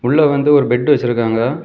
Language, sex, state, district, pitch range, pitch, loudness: Tamil, male, Tamil Nadu, Kanyakumari, 120-145 Hz, 135 Hz, -14 LUFS